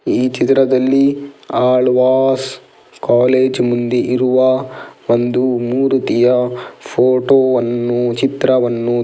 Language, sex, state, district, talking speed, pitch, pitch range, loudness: Kannada, male, Karnataka, Dakshina Kannada, 75 wpm, 125 Hz, 120-130 Hz, -14 LUFS